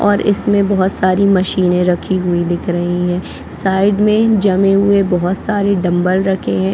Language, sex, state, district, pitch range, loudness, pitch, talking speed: Hindi, female, Chhattisgarh, Bilaspur, 180-200 Hz, -14 LUFS, 190 Hz, 180 wpm